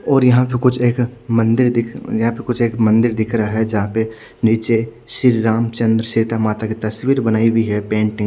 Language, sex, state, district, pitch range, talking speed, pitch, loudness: Hindi, male, Odisha, Khordha, 110-120 Hz, 220 wpm, 115 Hz, -17 LUFS